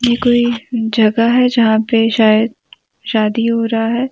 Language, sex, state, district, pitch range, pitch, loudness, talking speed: Hindi, female, Jharkhand, Deoghar, 220-240 Hz, 230 Hz, -14 LUFS, 160 wpm